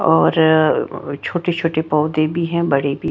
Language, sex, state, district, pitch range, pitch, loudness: Hindi, female, Bihar, Patna, 155-170 Hz, 160 Hz, -17 LUFS